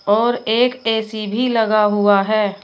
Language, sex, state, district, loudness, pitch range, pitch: Hindi, female, Uttar Pradesh, Shamli, -17 LUFS, 205-230 Hz, 215 Hz